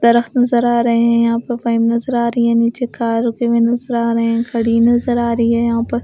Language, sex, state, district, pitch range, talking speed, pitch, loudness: Hindi, female, Bihar, West Champaran, 230-240 Hz, 270 wpm, 235 Hz, -15 LUFS